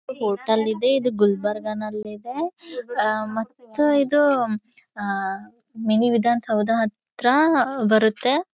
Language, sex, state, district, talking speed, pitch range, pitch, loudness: Kannada, female, Karnataka, Gulbarga, 100 wpm, 215-265 Hz, 225 Hz, -22 LUFS